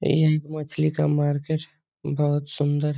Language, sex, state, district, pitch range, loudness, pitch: Hindi, male, Bihar, Lakhisarai, 145-155 Hz, -24 LUFS, 150 Hz